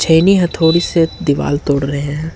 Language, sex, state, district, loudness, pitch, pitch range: Hindi, male, Jharkhand, Ranchi, -14 LUFS, 160 Hz, 145-165 Hz